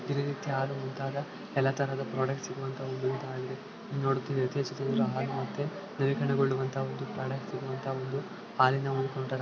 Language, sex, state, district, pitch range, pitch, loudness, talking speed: Kannada, male, Karnataka, Chamarajanagar, 130-140 Hz, 135 Hz, -32 LUFS, 40 wpm